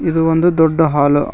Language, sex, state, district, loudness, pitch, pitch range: Kannada, male, Karnataka, Koppal, -14 LUFS, 160 Hz, 145-165 Hz